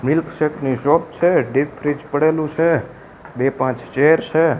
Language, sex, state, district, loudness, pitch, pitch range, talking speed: Gujarati, male, Gujarat, Gandhinagar, -18 LUFS, 150 Hz, 135-160 Hz, 155 wpm